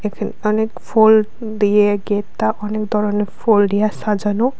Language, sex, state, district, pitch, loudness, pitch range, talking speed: Bengali, female, Tripura, West Tripura, 210 Hz, -17 LUFS, 205-215 Hz, 115 wpm